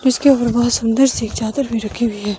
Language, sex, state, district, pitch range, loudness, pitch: Hindi, female, Himachal Pradesh, Shimla, 225-260 Hz, -17 LUFS, 240 Hz